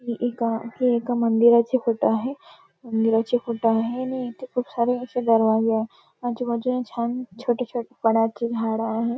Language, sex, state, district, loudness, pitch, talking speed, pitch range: Marathi, female, Maharashtra, Nagpur, -23 LUFS, 235 Hz, 150 wpm, 225-245 Hz